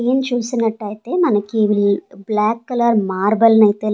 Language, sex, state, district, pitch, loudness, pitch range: Telugu, female, Andhra Pradesh, Sri Satya Sai, 215 Hz, -17 LUFS, 210-235 Hz